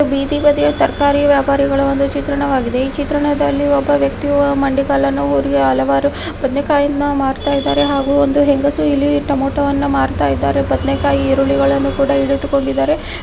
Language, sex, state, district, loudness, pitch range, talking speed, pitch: Kannada, female, Karnataka, Dharwad, -15 LUFS, 260-285 Hz, 120 wpm, 280 Hz